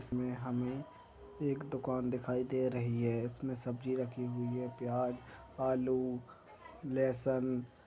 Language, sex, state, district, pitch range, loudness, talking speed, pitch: Hindi, male, Maharashtra, Aurangabad, 125-130 Hz, -37 LUFS, 120 wpm, 125 Hz